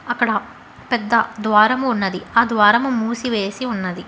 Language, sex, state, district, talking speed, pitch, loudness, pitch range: Telugu, female, Telangana, Hyderabad, 130 wpm, 225 Hz, -18 LUFS, 210-240 Hz